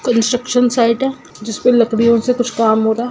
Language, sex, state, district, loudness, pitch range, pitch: Hindi, female, Bihar, Sitamarhi, -14 LUFS, 225-245 Hz, 235 Hz